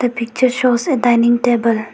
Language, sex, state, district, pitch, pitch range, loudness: English, female, Arunachal Pradesh, Longding, 240 Hz, 235-250 Hz, -15 LUFS